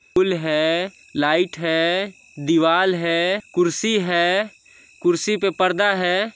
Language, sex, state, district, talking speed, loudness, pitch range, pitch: Hindi, male, Chhattisgarh, Sarguja, 105 wpm, -20 LUFS, 165-195 Hz, 180 Hz